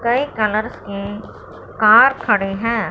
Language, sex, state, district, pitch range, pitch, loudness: Hindi, female, Punjab, Fazilka, 200-230 Hz, 215 Hz, -16 LUFS